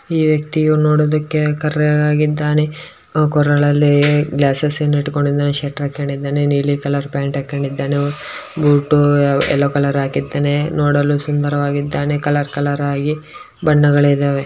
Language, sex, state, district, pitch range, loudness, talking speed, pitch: Kannada, male, Karnataka, Bellary, 145-150 Hz, -16 LUFS, 110 wpm, 145 Hz